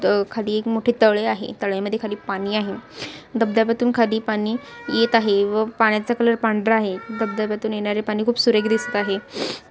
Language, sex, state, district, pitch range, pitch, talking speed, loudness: Marathi, female, Maharashtra, Sindhudurg, 210-230 Hz, 220 Hz, 160 wpm, -21 LUFS